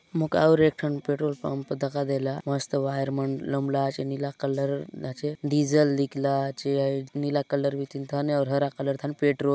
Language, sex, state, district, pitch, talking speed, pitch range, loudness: Halbi, male, Chhattisgarh, Bastar, 140 Hz, 120 wpm, 135-145 Hz, -27 LUFS